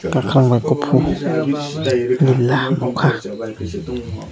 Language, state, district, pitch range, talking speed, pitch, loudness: Kokborok, Tripura, Dhalai, 120-140 Hz, 70 wpm, 125 Hz, -18 LUFS